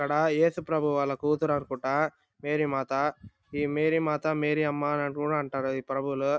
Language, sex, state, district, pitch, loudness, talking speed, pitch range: Telugu, male, Andhra Pradesh, Anantapur, 145 Hz, -28 LUFS, 150 wpm, 135-150 Hz